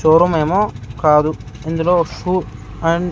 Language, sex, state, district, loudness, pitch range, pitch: Telugu, male, Andhra Pradesh, Sri Satya Sai, -17 LUFS, 125-175 Hz, 160 Hz